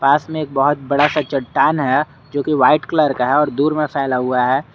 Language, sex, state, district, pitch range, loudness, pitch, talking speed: Hindi, male, Jharkhand, Garhwa, 135-150 Hz, -17 LUFS, 145 Hz, 255 wpm